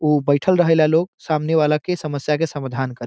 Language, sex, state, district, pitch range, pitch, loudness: Bhojpuri, male, Bihar, Saran, 145-160 Hz, 150 Hz, -19 LUFS